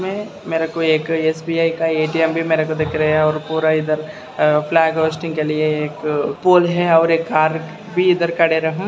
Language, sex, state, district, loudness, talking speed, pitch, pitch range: Hindi, male, Maharashtra, Dhule, -17 LUFS, 210 wpm, 160 Hz, 155-165 Hz